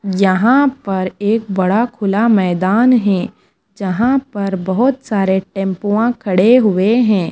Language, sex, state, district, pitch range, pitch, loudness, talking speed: Hindi, female, Bihar, Kaimur, 190-235 Hz, 205 Hz, -15 LUFS, 125 wpm